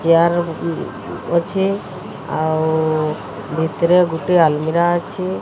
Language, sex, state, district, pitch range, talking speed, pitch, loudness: Odia, female, Odisha, Sambalpur, 160-175 Hz, 90 wpm, 165 Hz, -18 LUFS